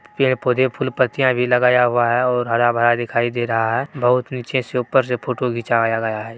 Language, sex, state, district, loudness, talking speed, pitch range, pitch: Maithili, male, Bihar, Bhagalpur, -18 LUFS, 215 wpm, 120-130 Hz, 125 Hz